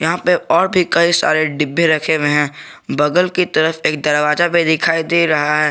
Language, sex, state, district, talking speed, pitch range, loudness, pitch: Hindi, male, Jharkhand, Garhwa, 210 wpm, 150-170 Hz, -15 LUFS, 160 Hz